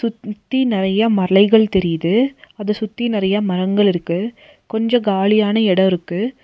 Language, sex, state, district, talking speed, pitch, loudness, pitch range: Tamil, female, Tamil Nadu, Nilgiris, 120 wpm, 210 Hz, -17 LUFS, 190-225 Hz